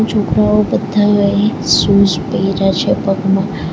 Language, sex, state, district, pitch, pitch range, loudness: Gujarati, female, Gujarat, Valsad, 195 Hz, 195-205 Hz, -13 LUFS